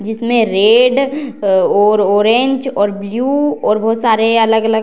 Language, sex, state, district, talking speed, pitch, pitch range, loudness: Hindi, female, Bihar, Darbhanga, 135 wpm, 225 Hz, 210-250 Hz, -13 LUFS